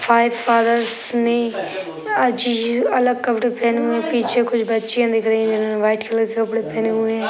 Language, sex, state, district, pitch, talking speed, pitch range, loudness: Hindi, female, Uttar Pradesh, Gorakhpur, 235 Hz, 190 wpm, 225-240 Hz, -19 LUFS